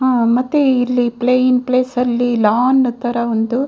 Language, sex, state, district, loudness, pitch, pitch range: Kannada, female, Karnataka, Dakshina Kannada, -15 LUFS, 245 Hz, 240-255 Hz